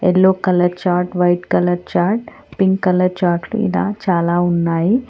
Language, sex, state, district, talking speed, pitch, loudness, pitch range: Telugu, female, Telangana, Hyderabad, 140 wpm, 180 Hz, -16 LUFS, 175-190 Hz